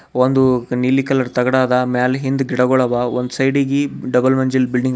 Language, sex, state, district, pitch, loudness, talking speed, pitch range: Kannada, male, Karnataka, Bidar, 130 Hz, -16 LUFS, 155 wpm, 125-135 Hz